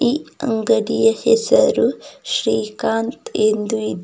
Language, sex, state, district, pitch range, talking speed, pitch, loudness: Kannada, female, Karnataka, Bidar, 220-305 Hz, 90 wpm, 225 Hz, -18 LUFS